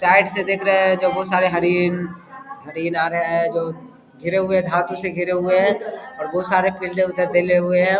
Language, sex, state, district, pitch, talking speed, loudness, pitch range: Hindi, male, Bihar, Vaishali, 180 Hz, 210 wpm, -19 LUFS, 175-190 Hz